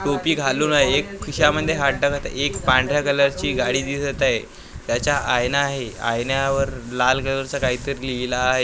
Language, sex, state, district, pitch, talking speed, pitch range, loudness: Marathi, male, Maharashtra, Gondia, 135 Hz, 155 wpm, 125-140 Hz, -21 LUFS